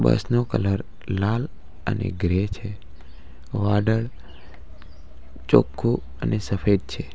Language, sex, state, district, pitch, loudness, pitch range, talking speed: Gujarati, male, Gujarat, Valsad, 95 Hz, -24 LUFS, 70-105 Hz, 100 wpm